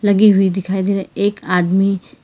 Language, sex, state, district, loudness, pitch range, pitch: Hindi, female, Karnataka, Bangalore, -16 LUFS, 190-200 Hz, 195 Hz